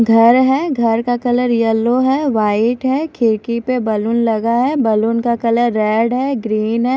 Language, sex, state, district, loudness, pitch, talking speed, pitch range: Hindi, female, Odisha, Khordha, -15 LUFS, 235 Hz, 180 wpm, 225-250 Hz